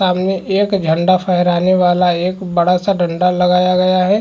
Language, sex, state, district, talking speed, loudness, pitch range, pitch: Hindi, male, Chhattisgarh, Rajnandgaon, 170 wpm, -14 LUFS, 180-185 Hz, 180 Hz